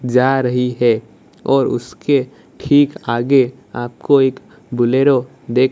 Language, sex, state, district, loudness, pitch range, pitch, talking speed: Hindi, female, Odisha, Malkangiri, -16 LUFS, 120-135 Hz, 130 Hz, 125 wpm